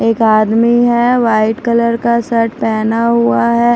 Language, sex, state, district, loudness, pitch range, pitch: Hindi, female, Delhi, New Delhi, -12 LUFS, 220-235 Hz, 230 Hz